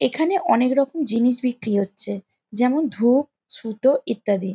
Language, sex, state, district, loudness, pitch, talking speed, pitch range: Bengali, female, West Bengal, Jalpaiguri, -21 LUFS, 245 Hz, 130 wpm, 205-275 Hz